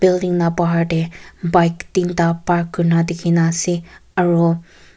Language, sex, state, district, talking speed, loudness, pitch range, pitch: Nagamese, female, Nagaland, Kohima, 155 wpm, -18 LUFS, 170-175 Hz, 170 Hz